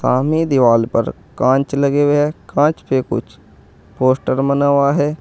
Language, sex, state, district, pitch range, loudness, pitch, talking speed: Hindi, male, Uttar Pradesh, Saharanpur, 130-145 Hz, -16 LUFS, 140 Hz, 160 wpm